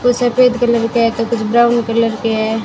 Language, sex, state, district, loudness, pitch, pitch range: Hindi, female, Rajasthan, Bikaner, -14 LUFS, 235 Hz, 225-240 Hz